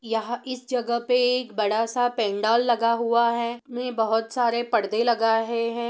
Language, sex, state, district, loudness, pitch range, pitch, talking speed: Hindi, female, Bihar, East Champaran, -24 LUFS, 225-245 Hz, 235 Hz, 185 wpm